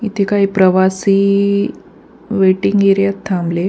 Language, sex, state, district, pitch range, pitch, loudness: Marathi, female, Maharashtra, Pune, 190-200 Hz, 195 Hz, -14 LUFS